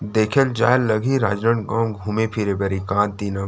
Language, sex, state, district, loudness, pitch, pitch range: Chhattisgarhi, male, Chhattisgarh, Rajnandgaon, -20 LUFS, 110 Hz, 100-115 Hz